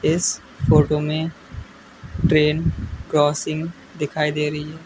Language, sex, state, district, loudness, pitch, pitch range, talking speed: Hindi, female, West Bengal, Alipurduar, -21 LUFS, 150 Hz, 150-160 Hz, 110 wpm